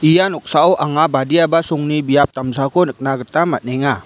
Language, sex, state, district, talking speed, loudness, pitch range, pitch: Garo, male, Meghalaya, West Garo Hills, 150 wpm, -15 LUFS, 135-165 Hz, 150 Hz